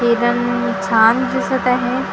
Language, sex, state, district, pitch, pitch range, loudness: Marathi, female, Maharashtra, Gondia, 240 Hz, 235-255 Hz, -16 LUFS